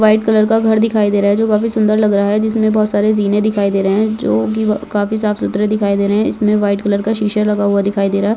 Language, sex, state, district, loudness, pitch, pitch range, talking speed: Hindi, male, Rajasthan, Churu, -14 LUFS, 210 Hz, 200-215 Hz, 285 wpm